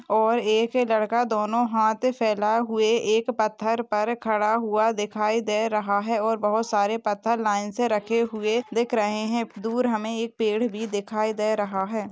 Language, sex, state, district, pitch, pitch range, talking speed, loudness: Hindi, female, Goa, North and South Goa, 220 Hz, 215-230 Hz, 180 wpm, -24 LUFS